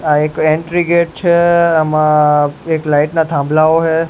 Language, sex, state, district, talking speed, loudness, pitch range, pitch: Gujarati, male, Gujarat, Gandhinagar, 160 wpm, -13 LUFS, 150-165 Hz, 160 Hz